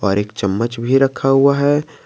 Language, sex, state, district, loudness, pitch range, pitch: Hindi, male, Jharkhand, Garhwa, -16 LUFS, 105-140 Hz, 135 Hz